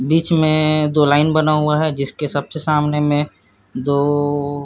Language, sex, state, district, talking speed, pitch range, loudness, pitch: Hindi, male, Chhattisgarh, Korba, 170 wpm, 145-155 Hz, -17 LUFS, 150 Hz